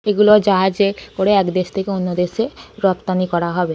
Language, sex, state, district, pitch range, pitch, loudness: Bengali, female, West Bengal, North 24 Parganas, 180-200 Hz, 190 Hz, -17 LUFS